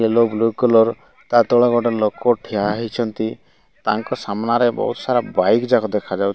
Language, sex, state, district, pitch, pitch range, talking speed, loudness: Odia, male, Odisha, Malkangiri, 115 Hz, 110-120 Hz, 160 wpm, -18 LUFS